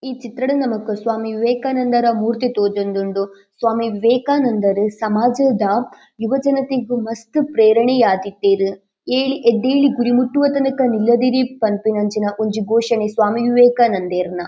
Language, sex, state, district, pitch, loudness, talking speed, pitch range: Tulu, female, Karnataka, Dakshina Kannada, 230 Hz, -17 LUFS, 110 wpm, 210-255 Hz